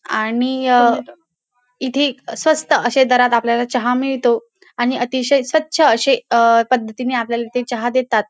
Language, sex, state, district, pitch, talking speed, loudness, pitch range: Marathi, female, Maharashtra, Dhule, 245 Hz, 135 wpm, -16 LUFS, 235-265 Hz